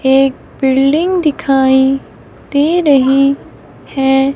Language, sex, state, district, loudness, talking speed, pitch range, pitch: Hindi, female, Himachal Pradesh, Shimla, -12 LUFS, 85 wpm, 270-285 Hz, 270 Hz